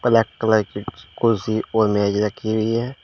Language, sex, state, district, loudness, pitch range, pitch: Hindi, male, Uttar Pradesh, Shamli, -20 LUFS, 105-115 Hz, 110 Hz